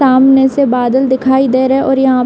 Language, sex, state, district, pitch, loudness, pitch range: Hindi, female, Uttar Pradesh, Hamirpur, 265 Hz, -11 LUFS, 260-270 Hz